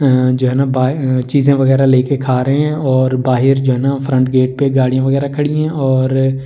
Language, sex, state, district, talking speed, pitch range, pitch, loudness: Hindi, male, Delhi, New Delhi, 240 wpm, 130-140 Hz, 135 Hz, -14 LUFS